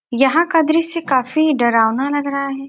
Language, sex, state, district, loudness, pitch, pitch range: Hindi, female, Bihar, Gopalganj, -16 LUFS, 275 Hz, 260-315 Hz